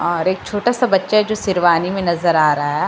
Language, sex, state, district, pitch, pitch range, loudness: Hindi, female, Uttar Pradesh, Lucknow, 185 Hz, 170-205 Hz, -16 LUFS